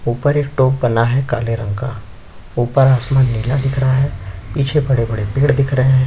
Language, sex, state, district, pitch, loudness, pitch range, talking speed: Hindi, male, Chhattisgarh, Sukma, 130 Hz, -16 LUFS, 115-135 Hz, 215 wpm